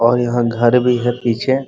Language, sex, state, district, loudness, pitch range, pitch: Hindi, male, Bihar, Muzaffarpur, -16 LUFS, 120-125 Hz, 120 Hz